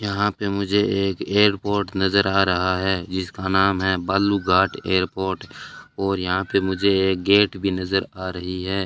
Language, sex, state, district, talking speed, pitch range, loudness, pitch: Hindi, male, Rajasthan, Bikaner, 170 wpm, 95-100 Hz, -21 LUFS, 95 Hz